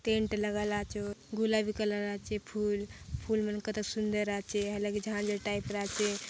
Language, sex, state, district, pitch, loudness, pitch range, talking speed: Halbi, female, Chhattisgarh, Bastar, 210 Hz, -34 LUFS, 205-215 Hz, 150 wpm